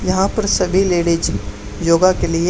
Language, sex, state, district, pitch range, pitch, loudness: Hindi, male, Haryana, Charkhi Dadri, 170-185 Hz, 180 Hz, -16 LUFS